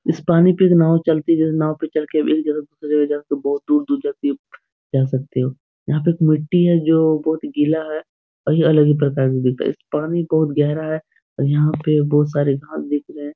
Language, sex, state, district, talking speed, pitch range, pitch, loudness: Hindi, male, Bihar, Supaul, 240 wpm, 145-160 Hz, 155 Hz, -18 LUFS